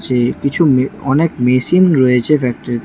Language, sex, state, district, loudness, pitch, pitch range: Bengali, female, West Bengal, Alipurduar, -14 LUFS, 130 Hz, 125-150 Hz